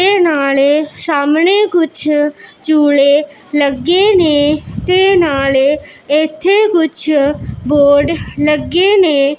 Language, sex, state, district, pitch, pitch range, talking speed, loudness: Punjabi, female, Punjab, Pathankot, 300 Hz, 285-345 Hz, 90 wpm, -12 LUFS